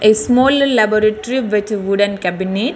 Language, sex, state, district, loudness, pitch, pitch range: English, female, Telangana, Hyderabad, -15 LUFS, 215 Hz, 205-245 Hz